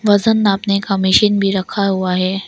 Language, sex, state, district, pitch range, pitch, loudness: Hindi, female, Arunachal Pradesh, Longding, 190-205 Hz, 195 Hz, -15 LUFS